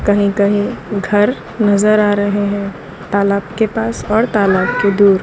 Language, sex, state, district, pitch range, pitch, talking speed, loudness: Hindi, female, Gujarat, Valsad, 200-210 Hz, 205 Hz, 160 wpm, -15 LUFS